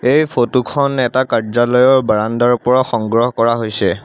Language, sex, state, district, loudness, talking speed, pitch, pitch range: Assamese, male, Assam, Sonitpur, -14 LUFS, 150 wpm, 120 Hz, 115-130 Hz